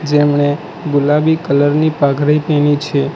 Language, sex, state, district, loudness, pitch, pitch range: Gujarati, male, Gujarat, Valsad, -14 LUFS, 145 Hz, 145-150 Hz